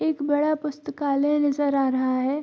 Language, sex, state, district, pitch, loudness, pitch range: Hindi, female, Bihar, Darbhanga, 290 Hz, -23 LUFS, 275-295 Hz